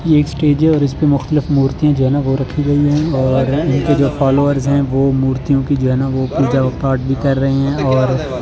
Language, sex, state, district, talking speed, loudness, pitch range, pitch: Hindi, male, Delhi, New Delhi, 250 wpm, -15 LUFS, 135-145 Hz, 135 Hz